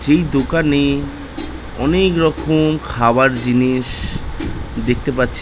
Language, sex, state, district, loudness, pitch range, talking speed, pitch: Bengali, male, West Bengal, North 24 Parganas, -16 LUFS, 125-155 Hz, 75 wpm, 140 Hz